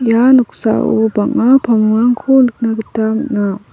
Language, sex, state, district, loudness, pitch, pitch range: Garo, female, Meghalaya, South Garo Hills, -13 LUFS, 230 Hz, 220-245 Hz